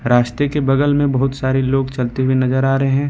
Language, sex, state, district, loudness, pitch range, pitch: Hindi, male, Jharkhand, Ranchi, -17 LUFS, 130-135 Hz, 135 Hz